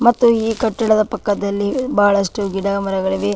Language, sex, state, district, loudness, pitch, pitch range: Kannada, female, Karnataka, Dakshina Kannada, -17 LUFS, 205 Hz, 200-225 Hz